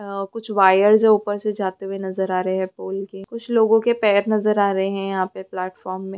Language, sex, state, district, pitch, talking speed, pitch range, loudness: Hindi, female, Bihar, Jamui, 195 Hz, 240 wpm, 190-210 Hz, -20 LUFS